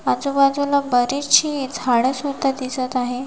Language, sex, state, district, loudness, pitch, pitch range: Marathi, female, Maharashtra, Washim, -19 LUFS, 270 Hz, 255-280 Hz